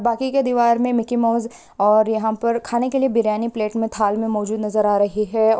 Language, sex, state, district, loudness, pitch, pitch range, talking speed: Hindi, female, Maharashtra, Solapur, -19 LUFS, 225 Hz, 215-235 Hz, 235 wpm